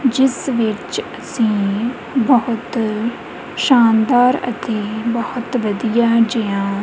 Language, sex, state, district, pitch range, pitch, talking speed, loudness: Punjabi, female, Punjab, Kapurthala, 220-245 Hz, 230 Hz, 80 wpm, -17 LUFS